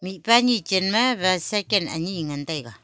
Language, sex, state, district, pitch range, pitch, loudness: Wancho, female, Arunachal Pradesh, Longding, 160-215 Hz, 190 Hz, -22 LUFS